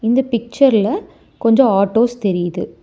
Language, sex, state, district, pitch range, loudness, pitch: Tamil, male, Tamil Nadu, Chennai, 200-240 Hz, -16 LUFS, 230 Hz